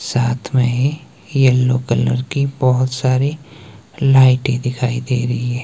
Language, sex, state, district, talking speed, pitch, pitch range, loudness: Hindi, male, Himachal Pradesh, Shimla, 140 wpm, 125 Hz, 125-135 Hz, -16 LUFS